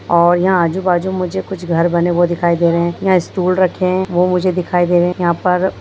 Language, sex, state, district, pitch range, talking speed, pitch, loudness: Hindi, female, Bihar, Purnia, 175-185 Hz, 270 wpm, 180 Hz, -15 LUFS